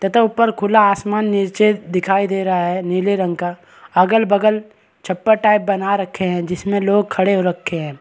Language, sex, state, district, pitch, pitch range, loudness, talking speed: Hindi, male, Maharashtra, Chandrapur, 195 Hz, 185-210 Hz, -17 LUFS, 185 wpm